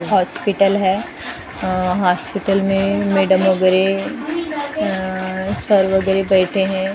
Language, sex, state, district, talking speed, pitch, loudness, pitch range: Hindi, female, Maharashtra, Gondia, 110 wpm, 195 Hz, -17 LUFS, 190-200 Hz